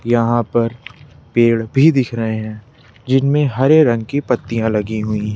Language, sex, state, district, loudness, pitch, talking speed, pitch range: Hindi, male, Madhya Pradesh, Bhopal, -16 LUFS, 120 Hz, 155 wpm, 110-135 Hz